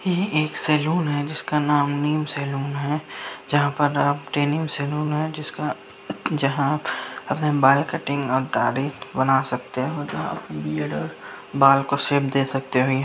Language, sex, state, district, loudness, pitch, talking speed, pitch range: Hindi, male, Bihar, Saharsa, -23 LUFS, 145 Hz, 165 wpm, 135-150 Hz